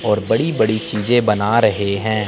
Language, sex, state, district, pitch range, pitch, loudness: Hindi, male, Chandigarh, Chandigarh, 100-110 Hz, 110 Hz, -17 LUFS